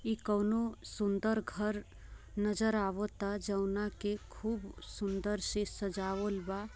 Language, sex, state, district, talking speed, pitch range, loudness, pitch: Bhojpuri, female, Bihar, Gopalganj, 115 wpm, 200-215 Hz, -36 LUFS, 205 Hz